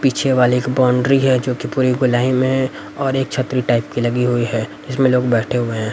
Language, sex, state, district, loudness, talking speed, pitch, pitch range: Hindi, male, Haryana, Rohtak, -17 LUFS, 230 wpm, 125 Hz, 120-130 Hz